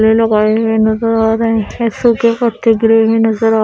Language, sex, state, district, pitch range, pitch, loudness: Hindi, female, Odisha, Khordha, 220-230 Hz, 225 Hz, -12 LUFS